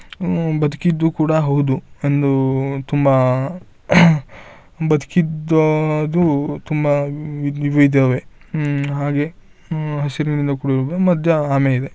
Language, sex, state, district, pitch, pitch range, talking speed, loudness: Kannada, male, Karnataka, Shimoga, 145 Hz, 140-160 Hz, 85 wpm, -18 LUFS